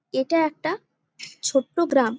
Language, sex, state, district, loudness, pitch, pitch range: Bengali, female, West Bengal, Jalpaiguri, -24 LUFS, 300 Hz, 265-325 Hz